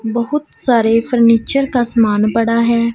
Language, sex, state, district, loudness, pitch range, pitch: Hindi, female, Punjab, Fazilka, -14 LUFS, 230-240 Hz, 235 Hz